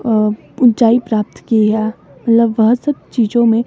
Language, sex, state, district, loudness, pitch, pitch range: Hindi, male, Himachal Pradesh, Shimla, -14 LUFS, 230 Hz, 220-235 Hz